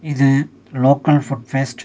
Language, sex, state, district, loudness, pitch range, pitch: Tamil, male, Tamil Nadu, Nilgiris, -17 LUFS, 135-145 Hz, 135 Hz